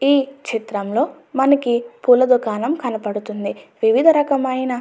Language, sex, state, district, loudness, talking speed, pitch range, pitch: Telugu, female, Andhra Pradesh, Anantapur, -18 LUFS, 75 wpm, 225-280 Hz, 255 Hz